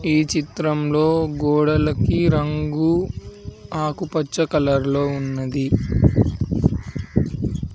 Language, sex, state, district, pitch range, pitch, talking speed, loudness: Telugu, male, Andhra Pradesh, Sri Satya Sai, 140-155 Hz, 150 Hz, 55 wpm, -20 LUFS